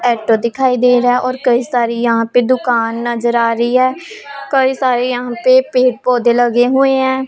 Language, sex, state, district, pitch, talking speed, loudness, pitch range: Hindi, female, Punjab, Pathankot, 250 Hz, 200 wpm, -13 LUFS, 240-260 Hz